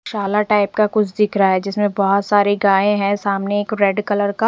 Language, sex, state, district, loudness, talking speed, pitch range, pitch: Hindi, female, Punjab, Fazilka, -17 LUFS, 225 wpm, 200-210 Hz, 205 Hz